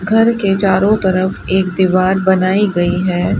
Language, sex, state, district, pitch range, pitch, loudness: Hindi, female, Rajasthan, Bikaner, 185-200 Hz, 190 Hz, -14 LUFS